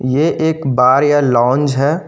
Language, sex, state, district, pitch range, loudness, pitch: Hindi, male, Jharkhand, Ranchi, 130-150 Hz, -13 LUFS, 140 Hz